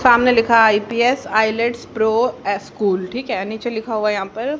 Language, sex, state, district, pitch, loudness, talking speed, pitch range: Hindi, female, Haryana, Charkhi Dadri, 225 Hz, -18 LUFS, 180 wpm, 215-240 Hz